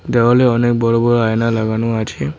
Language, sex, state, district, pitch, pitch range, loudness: Bengali, male, West Bengal, Cooch Behar, 115 Hz, 110-120 Hz, -15 LUFS